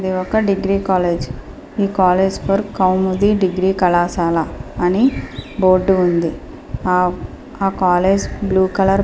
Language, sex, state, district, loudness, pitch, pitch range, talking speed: Telugu, female, Andhra Pradesh, Srikakulam, -17 LUFS, 190 Hz, 180-195 Hz, 125 wpm